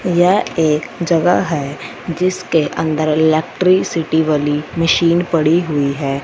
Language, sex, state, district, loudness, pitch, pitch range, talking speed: Hindi, female, Punjab, Fazilka, -16 LUFS, 160 Hz, 150-175 Hz, 115 wpm